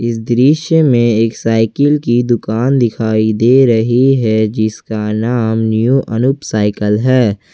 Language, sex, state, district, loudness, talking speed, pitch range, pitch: Hindi, male, Jharkhand, Ranchi, -13 LUFS, 135 wpm, 110-130 Hz, 115 Hz